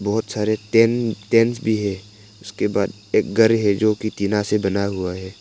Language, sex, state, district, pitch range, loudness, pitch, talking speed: Hindi, male, Arunachal Pradesh, Papum Pare, 100-110 Hz, -20 LUFS, 105 Hz, 200 wpm